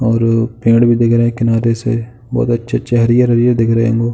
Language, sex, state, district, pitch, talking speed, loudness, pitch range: Hindi, male, Uttar Pradesh, Jalaun, 115 Hz, 220 wpm, -13 LUFS, 115-120 Hz